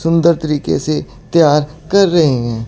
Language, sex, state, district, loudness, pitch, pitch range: Hindi, male, Chandigarh, Chandigarh, -14 LUFS, 155 Hz, 145-165 Hz